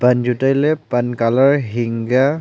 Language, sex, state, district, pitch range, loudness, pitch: Wancho, male, Arunachal Pradesh, Longding, 120-135 Hz, -17 LUFS, 125 Hz